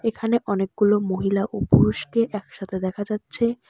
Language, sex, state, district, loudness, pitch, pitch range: Bengali, male, West Bengal, Alipurduar, -23 LUFS, 210 Hz, 195-225 Hz